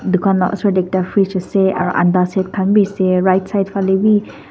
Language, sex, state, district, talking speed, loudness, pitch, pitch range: Nagamese, female, Nagaland, Dimapur, 215 wpm, -15 LUFS, 190 Hz, 185-195 Hz